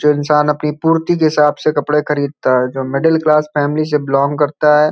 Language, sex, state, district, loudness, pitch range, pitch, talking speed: Hindi, male, Uttar Pradesh, Hamirpur, -14 LUFS, 145-155 Hz, 150 Hz, 220 wpm